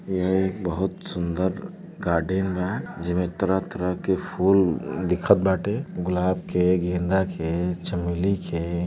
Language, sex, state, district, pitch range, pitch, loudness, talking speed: Bhojpuri, male, Uttar Pradesh, Deoria, 90-95 Hz, 90 Hz, -24 LUFS, 130 wpm